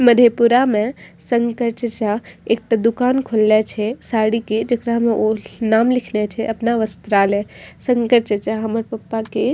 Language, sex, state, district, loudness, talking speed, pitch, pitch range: Maithili, female, Bihar, Madhepura, -18 LUFS, 150 wpm, 225 Hz, 215-235 Hz